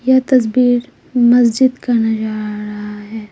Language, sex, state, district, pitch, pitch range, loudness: Hindi, female, Bihar, Patna, 235 Hz, 215-255 Hz, -15 LUFS